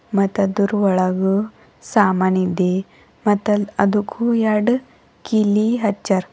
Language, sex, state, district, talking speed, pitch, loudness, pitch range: Kannada, female, Karnataka, Bidar, 95 wpm, 205 Hz, -19 LUFS, 190-215 Hz